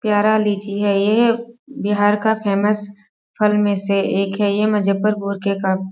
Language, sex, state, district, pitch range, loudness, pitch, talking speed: Hindi, female, Bihar, Sitamarhi, 200-210 Hz, -18 LUFS, 205 Hz, 180 wpm